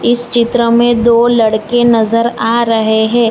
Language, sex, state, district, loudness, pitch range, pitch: Hindi, female, Gujarat, Valsad, -11 LUFS, 225-240 Hz, 235 Hz